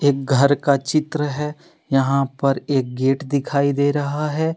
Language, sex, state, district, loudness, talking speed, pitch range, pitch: Hindi, male, Jharkhand, Deoghar, -20 LUFS, 160 wpm, 135-150 Hz, 140 Hz